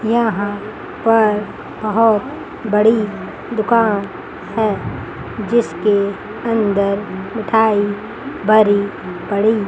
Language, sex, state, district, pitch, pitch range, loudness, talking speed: Hindi, female, Chandigarh, Chandigarh, 215 Hz, 200-225 Hz, -17 LUFS, 70 wpm